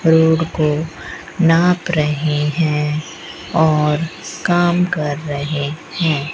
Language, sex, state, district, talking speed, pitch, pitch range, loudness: Hindi, female, Rajasthan, Bikaner, 95 wpm, 155 Hz, 150-165 Hz, -17 LUFS